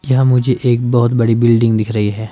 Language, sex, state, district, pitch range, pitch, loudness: Hindi, male, Himachal Pradesh, Shimla, 110-125 Hz, 120 Hz, -13 LUFS